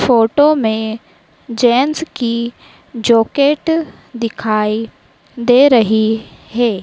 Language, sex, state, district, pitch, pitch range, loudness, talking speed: Hindi, female, Madhya Pradesh, Dhar, 235 Hz, 225-270 Hz, -14 LUFS, 80 wpm